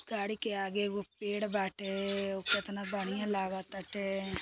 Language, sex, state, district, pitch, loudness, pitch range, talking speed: Bhojpuri, female, Uttar Pradesh, Deoria, 200 Hz, -35 LUFS, 195-205 Hz, 120 wpm